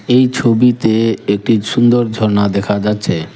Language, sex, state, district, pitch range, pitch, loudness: Bengali, male, West Bengal, Cooch Behar, 105-120 Hz, 110 Hz, -13 LUFS